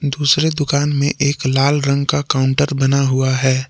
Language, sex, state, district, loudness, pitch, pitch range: Hindi, male, Jharkhand, Palamu, -16 LUFS, 140 Hz, 135-145 Hz